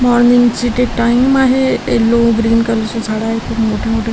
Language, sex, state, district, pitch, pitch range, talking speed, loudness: Marathi, female, Maharashtra, Washim, 235 Hz, 225-245 Hz, 205 wpm, -13 LUFS